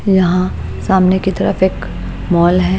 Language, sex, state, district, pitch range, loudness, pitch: Hindi, female, Bihar, Patna, 180-190 Hz, -15 LUFS, 185 Hz